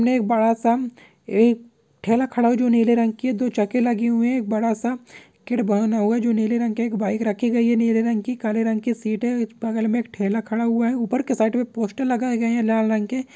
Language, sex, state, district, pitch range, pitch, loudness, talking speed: Hindi, female, Bihar, Samastipur, 220-240 Hz, 230 Hz, -21 LUFS, 245 wpm